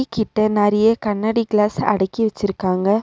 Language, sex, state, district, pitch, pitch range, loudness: Tamil, female, Tamil Nadu, Nilgiris, 210 Hz, 205-220 Hz, -18 LUFS